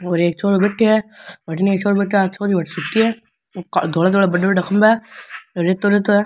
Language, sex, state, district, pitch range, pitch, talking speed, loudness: Rajasthani, male, Rajasthan, Nagaur, 180-205 Hz, 195 Hz, 220 wpm, -17 LUFS